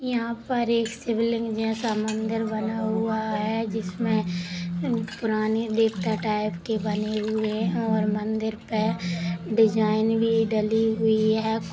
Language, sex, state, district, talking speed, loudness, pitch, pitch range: Hindi, female, Chhattisgarh, Sukma, 125 wpm, -25 LUFS, 220 Hz, 215-225 Hz